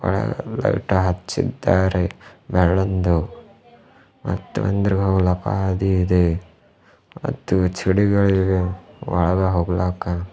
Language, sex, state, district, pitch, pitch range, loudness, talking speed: Kannada, male, Karnataka, Bidar, 95 Hz, 90-95 Hz, -20 LUFS, 80 wpm